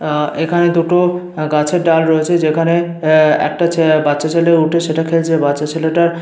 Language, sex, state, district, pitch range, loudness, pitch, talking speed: Bengali, male, West Bengal, Paschim Medinipur, 155-170 Hz, -14 LUFS, 160 Hz, 165 wpm